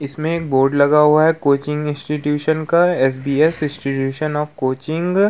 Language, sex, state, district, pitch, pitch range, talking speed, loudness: Hindi, male, Uttar Pradesh, Muzaffarnagar, 150 Hz, 140-155 Hz, 180 wpm, -17 LUFS